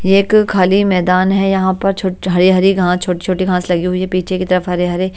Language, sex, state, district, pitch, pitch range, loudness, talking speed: Hindi, male, Delhi, New Delhi, 185 Hz, 180-190 Hz, -14 LUFS, 230 wpm